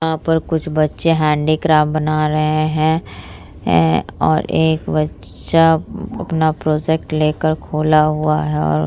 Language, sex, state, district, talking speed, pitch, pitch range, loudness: Hindi, female, Bihar, Vaishali, 130 wpm, 155 Hz, 100-160 Hz, -16 LUFS